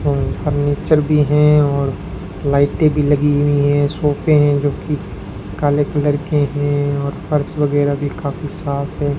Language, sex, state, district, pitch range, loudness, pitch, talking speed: Hindi, male, Rajasthan, Bikaner, 140-150 Hz, -17 LUFS, 145 Hz, 155 wpm